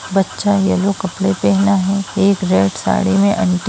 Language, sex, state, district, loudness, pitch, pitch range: Hindi, female, Bihar, Jamui, -15 LUFS, 195 Hz, 175-195 Hz